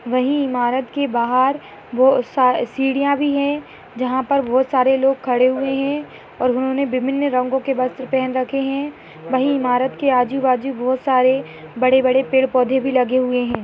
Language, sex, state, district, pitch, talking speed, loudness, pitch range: Hindi, female, Chhattisgarh, Bastar, 260 Hz, 165 wpm, -18 LUFS, 255-270 Hz